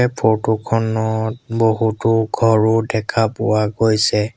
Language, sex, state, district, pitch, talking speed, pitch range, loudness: Assamese, male, Assam, Sonitpur, 110 Hz, 95 wpm, 110-115 Hz, -17 LUFS